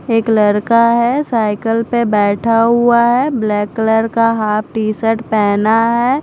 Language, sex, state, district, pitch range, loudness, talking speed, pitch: Hindi, female, Punjab, Fazilka, 215-235 Hz, -14 LUFS, 135 wpm, 225 Hz